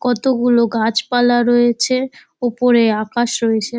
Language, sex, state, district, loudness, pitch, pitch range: Bengali, female, West Bengal, Dakshin Dinajpur, -16 LUFS, 240 Hz, 230-245 Hz